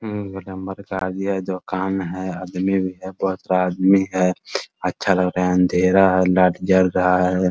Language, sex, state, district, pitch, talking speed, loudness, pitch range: Hindi, male, Bihar, Muzaffarpur, 95 Hz, 160 wpm, -20 LUFS, 90-95 Hz